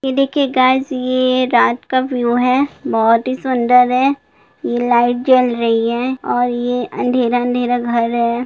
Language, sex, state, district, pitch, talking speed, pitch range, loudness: Hindi, female, Bihar, Gopalganj, 250 Hz, 150 wpm, 240-255 Hz, -15 LUFS